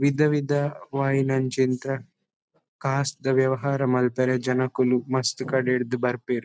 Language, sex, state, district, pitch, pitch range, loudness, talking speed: Tulu, male, Karnataka, Dakshina Kannada, 130 Hz, 125-135 Hz, -24 LUFS, 100 wpm